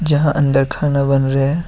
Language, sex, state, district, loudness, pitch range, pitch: Hindi, male, Jharkhand, Deoghar, -15 LUFS, 135-150 Hz, 140 Hz